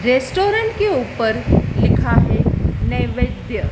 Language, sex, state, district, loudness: Hindi, female, Madhya Pradesh, Dhar, -17 LUFS